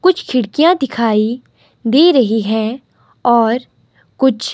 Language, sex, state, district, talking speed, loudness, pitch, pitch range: Hindi, female, Himachal Pradesh, Shimla, 105 wpm, -14 LUFS, 245 Hz, 225-275 Hz